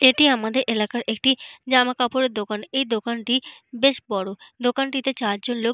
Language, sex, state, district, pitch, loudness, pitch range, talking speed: Bengali, female, Jharkhand, Jamtara, 245 Hz, -22 LUFS, 225-265 Hz, 135 wpm